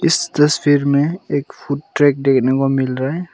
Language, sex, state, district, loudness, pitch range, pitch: Hindi, male, Arunachal Pradesh, Longding, -16 LUFS, 135-145 Hz, 140 Hz